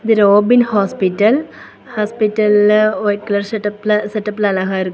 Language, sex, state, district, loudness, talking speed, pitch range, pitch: Tamil, female, Tamil Nadu, Kanyakumari, -15 LUFS, 145 wpm, 205-215 Hz, 210 Hz